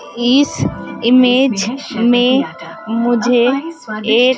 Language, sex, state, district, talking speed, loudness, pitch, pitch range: Hindi, female, Madhya Pradesh, Dhar, 70 wpm, -14 LUFS, 245 Hz, 235-260 Hz